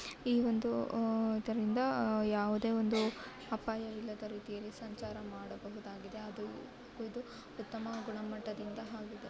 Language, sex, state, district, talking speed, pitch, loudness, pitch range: Kannada, female, Karnataka, Raichur, 95 wpm, 220 Hz, -38 LUFS, 215-225 Hz